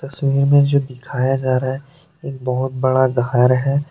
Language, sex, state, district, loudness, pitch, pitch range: Hindi, male, Jharkhand, Deoghar, -17 LUFS, 135 Hz, 130-140 Hz